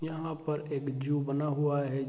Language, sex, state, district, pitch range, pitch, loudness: Hindi, male, Bihar, Saharsa, 140-150 Hz, 145 Hz, -32 LUFS